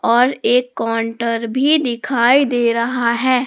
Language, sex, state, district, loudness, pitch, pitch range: Hindi, female, Jharkhand, Palamu, -16 LUFS, 240 Hz, 230-255 Hz